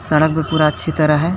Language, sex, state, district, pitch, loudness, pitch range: Sadri, male, Chhattisgarh, Jashpur, 160 Hz, -15 LUFS, 155-160 Hz